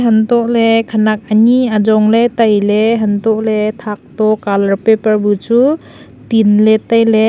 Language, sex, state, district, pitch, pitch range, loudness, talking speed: Wancho, female, Arunachal Pradesh, Longding, 220 Hz, 215-230 Hz, -12 LUFS, 105 wpm